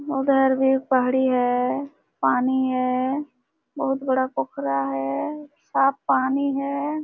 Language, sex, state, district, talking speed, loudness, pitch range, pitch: Hindi, female, Jharkhand, Sahebganj, 120 wpm, -23 LUFS, 255-275 Hz, 265 Hz